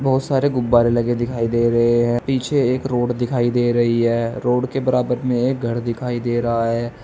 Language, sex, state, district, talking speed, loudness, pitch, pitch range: Hindi, male, Uttar Pradesh, Saharanpur, 215 wpm, -19 LUFS, 120 Hz, 120-125 Hz